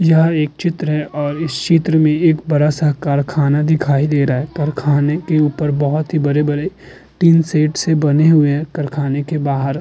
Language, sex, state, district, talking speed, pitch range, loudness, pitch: Hindi, male, Uttar Pradesh, Muzaffarnagar, 185 wpm, 145-160 Hz, -15 LUFS, 150 Hz